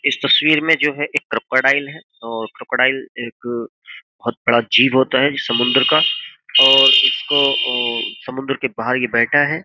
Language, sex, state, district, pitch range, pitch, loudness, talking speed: Hindi, male, Uttar Pradesh, Jyotiba Phule Nagar, 120-145 Hz, 135 Hz, -15 LUFS, 160 wpm